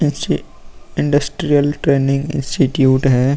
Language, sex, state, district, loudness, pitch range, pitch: Hindi, male, Bihar, Vaishali, -16 LUFS, 135-145 Hz, 140 Hz